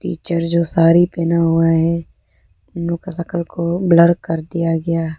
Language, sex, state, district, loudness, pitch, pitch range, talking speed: Hindi, female, Arunachal Pradesh, Lower Dibang Valley, -17 LUFS, 170 Hz, 165-170 Hz, 175 wpm